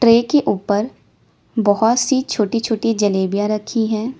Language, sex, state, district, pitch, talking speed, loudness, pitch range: Hindi, female, Uttar Pradesh, Lalitpur, 225 Hz, 145 wpm, -18 LUFS, 205-240 Hz